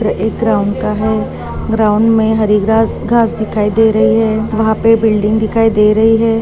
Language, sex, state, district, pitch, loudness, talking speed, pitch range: Hindi, female, Maharashtra, Dhule, 220 Hz, -12 LUFS, 205 wpm, 215-225 Hz